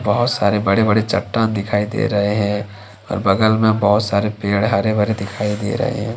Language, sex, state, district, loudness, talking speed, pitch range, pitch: Hindi, male, Jharkhand, Deoghar, -18 LUFS, 195 wpm, 100-110 Hz, 105 Hz